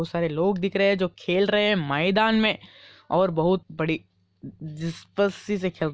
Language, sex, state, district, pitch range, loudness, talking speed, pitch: Hindi, female, Andhra Pradesh, Anantapur, 160-200 Hz, -24 LUFS, 170 wpm, 185 Hz